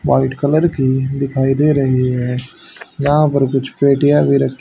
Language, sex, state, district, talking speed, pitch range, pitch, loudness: Hindi, male, Haryana, Jhajjar, 155 wpm, 130-145 Hz, 135 Hz, -15 LUFS